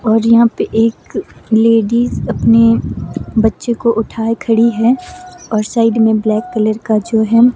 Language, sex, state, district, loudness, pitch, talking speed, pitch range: Hindi, female, Himachal Pradesh, Shimla, -13 LUFS, 230 Hz, 150 wpm, 220-235 Hz